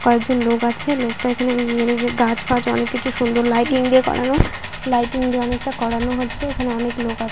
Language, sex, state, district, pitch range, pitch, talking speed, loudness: Bengali, female, West Bengal, Paschim Medinipur, 235-255 Hz, 245 Hz, 190 wpm, -19 LUFS